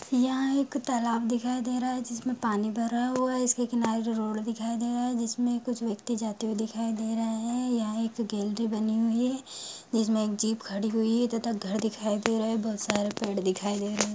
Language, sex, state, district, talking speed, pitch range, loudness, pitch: Hindi, female, Bihar, Sitamarhi, 230 wpm, 220-245 Hz, -29 LUFS, 225 Hz